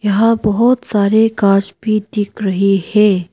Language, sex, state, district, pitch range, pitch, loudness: Hindi, female, Arunachal Pradesh, Papum Pare, 195-220 Hz, 210 Hz, -14 LUFS